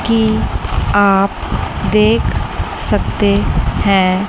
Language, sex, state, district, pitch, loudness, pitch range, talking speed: Hindi, female, Chandigarh, Chandigarh, 205 Hz, -15 LUFS, 195-215 Hz, 70 wpm